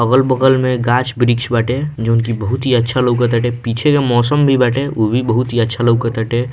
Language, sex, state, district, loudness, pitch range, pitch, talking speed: Bhojpuri, male, Bihar, Muzaffarpur, -15 LUFS, 115-130 Hz, 120 Hz, 200 wpm